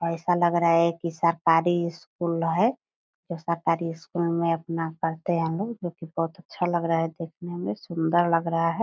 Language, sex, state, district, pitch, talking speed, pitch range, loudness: Hindi, female, Bihar, Purnia, 170 Hz, 195 wpm, 165-175 Hz, -26 LUFS